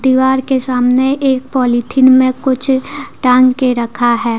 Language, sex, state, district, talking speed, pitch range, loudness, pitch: Hindi, female, Jharkhand, Deoghar, 150 wpm, 250-265 Hz, -12 LUFS, 260 Hz